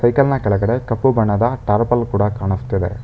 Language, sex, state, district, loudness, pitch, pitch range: Kannada, male, Karnataka, Bangalore, -17 LUFS, 115 Hz, 100-120 Hz